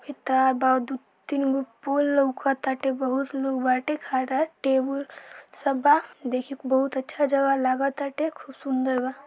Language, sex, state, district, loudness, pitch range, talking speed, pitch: Bhojpuri, female, Bihar, Saran, -25 LUFS, 260-280 Hz, 160 wpm, 270 Hz